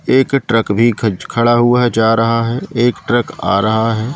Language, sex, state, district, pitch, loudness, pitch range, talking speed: Hindi, male, Madhya Pradesh, Katni, 115 Hz, -14 LUFS, 110-120 Hz, 215 wpm